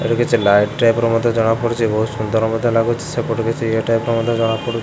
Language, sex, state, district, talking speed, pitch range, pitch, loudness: Odia, male, Odisha, Khordha, 260 wpm, 115-120 Hz, 115 Hz, -17 LUFS